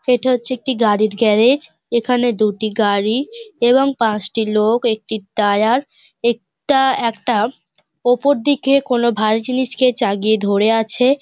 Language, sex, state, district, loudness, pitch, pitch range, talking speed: Bengali, female, West Bengal, Dakshin Dinajpur, -16 LUFS, 235 Hz, 215-255 Hz, 130 wpm